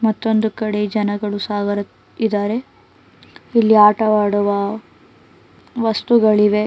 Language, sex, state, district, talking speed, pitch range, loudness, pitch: Kannada, female, Karnataka, Bangalore, 70 wpm, 205-220 Hz, -17 LUFS, 210 Hz